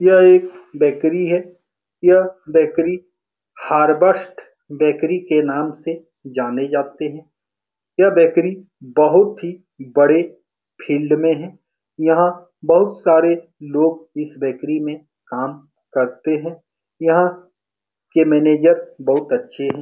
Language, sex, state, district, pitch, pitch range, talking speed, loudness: Hindi, male, Bihar, Saran, 160 Hz, 145-180 Hz, 120 wpm, -17 LUFS